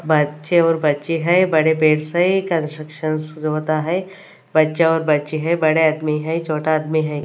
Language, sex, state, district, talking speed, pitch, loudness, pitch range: Hindi, female, Punjab, Kapurthala, 165 wpm, 155 Hz, -18 LUFS, 155-165 Hz